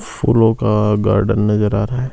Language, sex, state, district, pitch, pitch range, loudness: Hindi, male, Himachal Pradesh, Shimla, 105 Hz, 105-115 Hz, -15 LUFS